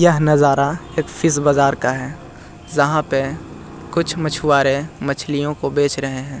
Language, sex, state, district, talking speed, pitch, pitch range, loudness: Hindi, male, Bihar, Jahanabad, 150 wpm, 145 Hz, 135-155 Hz, -18 LUFS